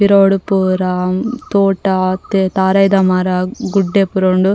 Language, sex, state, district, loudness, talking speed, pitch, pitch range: Tulu, female, Karnataka, Dakshina Kannada, -14 LUFS, 105 wpm, 190 Hz, 185-195 Hz